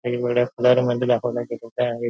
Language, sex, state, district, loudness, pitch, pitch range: Marathi, male, Maharashtra, Nagpur, -21 LUFS, 120 Hz, 120-125 Hz